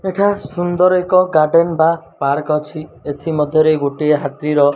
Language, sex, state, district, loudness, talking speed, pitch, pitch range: Odia, male, Odisha, Malkangiri, -15 LUFS, 175 wpm, 155 Hz, 150-175 Hz